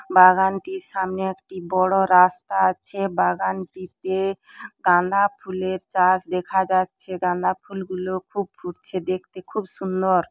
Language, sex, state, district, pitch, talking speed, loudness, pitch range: Bengali, female, West Bengal, Dakshin Dinajpur, 185 Hz, 110 wpm, -22 LUFS, 185-190 Hz